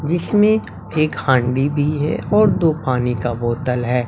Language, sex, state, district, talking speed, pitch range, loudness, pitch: Hindi, male, Bihar, Katihar, 160 wpm, 125-165 Hz, -18 LUFS, 145 Hz